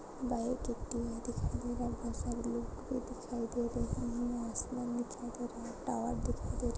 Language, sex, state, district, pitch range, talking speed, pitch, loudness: Hindi, female, Uttar Pradesh, Jalaun, 230-245 Hz, 210 wpm, 240 Hz, -39 LUFS